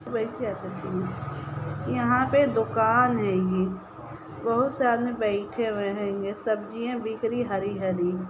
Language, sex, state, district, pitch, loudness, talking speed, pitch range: Hindi, female, Chhattisgarh, Bilaspur, 220 Hz, -26 LUFS, 115 wpm, 200-240 Hz